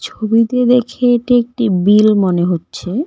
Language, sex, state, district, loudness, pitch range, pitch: Bengali, female, West Bengal, Cooch Behar, -13 LUFS, 195-245 Hz, 230 Hz